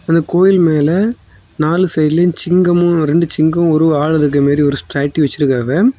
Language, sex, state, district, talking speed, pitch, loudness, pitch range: Tamil, male, Tamil Nadu, Kanyakumari, 150 wpm, 160 Hz, -13 LUFS, 150-175 Hz